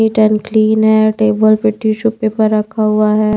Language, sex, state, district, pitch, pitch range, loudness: Hindi, female, Bihar, Patna, 215 Hz, 215-220 Hz, -13 LUFS